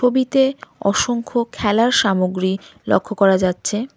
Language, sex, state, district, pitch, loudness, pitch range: Bengali, female, West Bengal, Cooch Behar, 215 Hz, -18 LUFS, 190-250 Hz